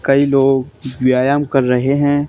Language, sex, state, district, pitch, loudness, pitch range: Hindi, male, Haryana, Charkhi Dadri, 135 Hz, -15 LUFS, 130-145 Hz